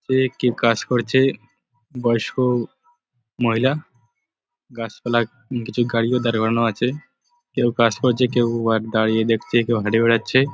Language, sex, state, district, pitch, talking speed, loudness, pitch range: Bengali, male, West Bengal, Purulia, 120 Hz, 120 wpm, -20 LUFS, 115-130 Hz